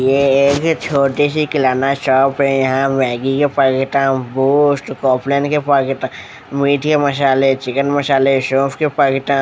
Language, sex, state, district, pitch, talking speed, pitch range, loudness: Hindi, male, Odisha, Khordha, 135 Hz, 155 wpm, 135-140 Hz, -15 LUFS